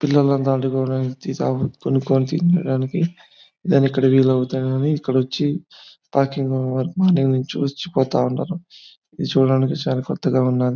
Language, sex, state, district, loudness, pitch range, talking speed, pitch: Telugu, male, Andhra Pradesh, Anantapur, -20 LUFS, 130-145 Hz, 80 wpm, 135 Hz